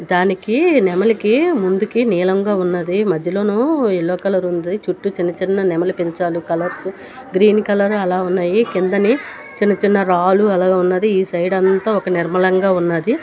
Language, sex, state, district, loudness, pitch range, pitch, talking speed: Telugu, female, Andhra Pradesh, Srikakulam, -16 LUFS, 180-205 Hz, 190 Hz, 135 wpm